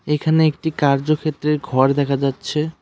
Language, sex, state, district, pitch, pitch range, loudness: Bengali, male, West Bengal, Cooch Behar, 150 Hz, 140-155 Hz, -19 LUFS